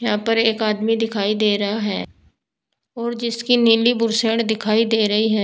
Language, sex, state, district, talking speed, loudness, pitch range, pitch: Hindi, female, Uttar Pradesh, Saharanpur, 175 wpm, -19 LUFS, 215-230 Hz, 225 Hz